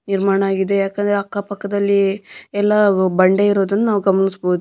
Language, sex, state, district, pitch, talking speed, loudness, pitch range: Kannada, female, Karnataka, Dharwad, 200 Hz, 115 wpm, -17 LUFS, 195-205 Hz